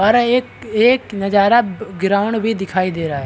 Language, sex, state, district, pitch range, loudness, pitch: Hindi, male, Bihar, Araria, 190-225 Hz, -16 LUFS, 205 Hz